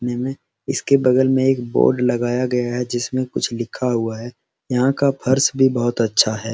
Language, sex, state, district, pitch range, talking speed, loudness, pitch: Hindi, male, Bihar, Araria, 120-130 Hz, 185 wpm, -19 LUFS, 125 Hz